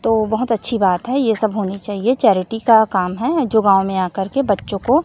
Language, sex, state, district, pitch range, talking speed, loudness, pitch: Hindi, female, Chhattisgarh, Raipur, 195-240 Hz, 240 wpm, -17 LUFS, 220 Hz